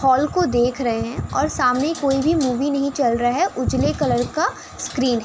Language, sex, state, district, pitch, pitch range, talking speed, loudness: Hindi, female, Uttar Pradesh, Budaun, 265 Hz, 245-290 Hz, 240 wpm, -20 LUFS